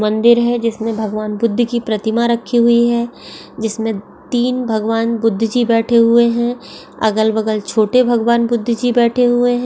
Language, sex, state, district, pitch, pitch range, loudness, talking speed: Hindi, female, Maharashtra, Pune, 235 Hz, 220-240 Hz, -15 LUFS, 165 wpm